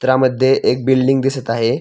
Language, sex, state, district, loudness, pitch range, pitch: Marathi, male, Maharashtra, Pune, -15 LUFS, 130-135 Hz, 130 Hz